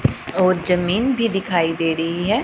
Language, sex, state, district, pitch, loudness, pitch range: Hindi, female, Punjab, Pathankot, 180 Hz, -19 LUFS, 165-195 Hz